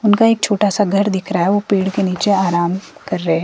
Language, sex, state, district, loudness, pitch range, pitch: Hindi, female, Himachal Pradesh, Shimla, -16 LUFS, 185-205 Hz, 200 Hz